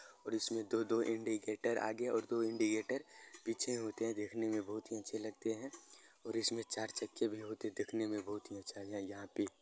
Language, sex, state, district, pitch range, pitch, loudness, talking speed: Hindi, male, Bihar, Araria, 105-115 Hz, 110 Hz, -40 LUFS, 200 wpm